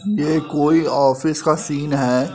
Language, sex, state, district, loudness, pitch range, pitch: Hindi, male, Uttar Pradesh, Etah, -18 LUFS, 140-160 Hz, 150 Hz